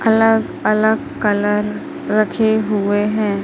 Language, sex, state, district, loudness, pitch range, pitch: Hindi, female, Madhya Pradesh, Katni, -17 LUFS, 205-220 Hz, 215 Hz